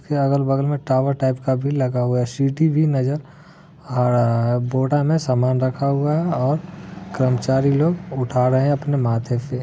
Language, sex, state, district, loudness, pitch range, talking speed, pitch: Hindi, male, Bihar, Muzaffarpur, -20 LUFS, 125-145 Hz, 200 wpm, 135 Hz